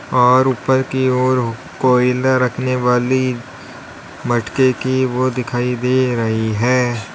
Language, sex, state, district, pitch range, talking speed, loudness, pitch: Hindi, male, Uttar Pradesh, Lalitpur, 125-130 Hz, 115 wpm, -16 LUFS, 125 Hz